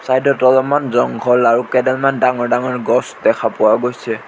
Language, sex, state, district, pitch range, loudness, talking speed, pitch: Assamese, male, Assam, Sonitpur, 120-130 Hz, -15 LUFS, 155 wpm, 125 Hz